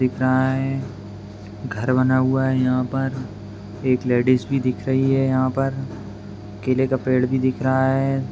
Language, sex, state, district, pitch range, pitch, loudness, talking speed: Hindi, male, Bihar, Madhepura, 120-130 Hz, 130 Hz, -21 LUFS, 175 wpm